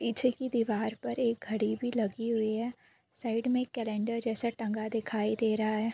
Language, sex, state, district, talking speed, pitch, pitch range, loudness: Hindi, female, Chhattisgarh, Bilaspur, 200 wpm, 225 Hz, 215-235 Hz, -32 LUFS